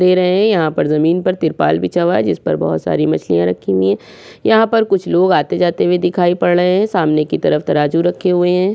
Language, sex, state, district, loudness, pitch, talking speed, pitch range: Hindi, female, Uttarakhand, Tehri Garhwal, -14 LUFS, 175 Hz, 245 wpm, 150-185 Hz